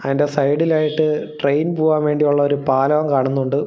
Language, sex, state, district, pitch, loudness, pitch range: Malayalam, male, Kerala, Thiruvananthapuram, 145 Hz, -17 LUFS, 140-155 Hz